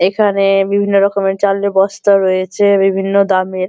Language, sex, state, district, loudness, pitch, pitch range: Bengali, male, West Bengal, Malda, -13 LUFS, 195 Hz, 190-200 Hz